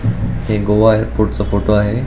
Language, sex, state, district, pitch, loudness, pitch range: Marathi, male, Goa, North and South Goa, 105 Hz, -15 LUFS, 105-110 Hz